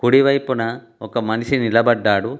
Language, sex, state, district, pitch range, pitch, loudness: Telugu, male, Telangana, Hyderabad, 115-130 Hz, 115 Hz, -18 LUFS